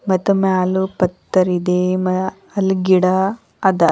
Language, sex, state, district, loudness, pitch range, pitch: Kannada, female, Karnataka, Bidar, -17 LUFS, 185-190 Hz, 185 Hz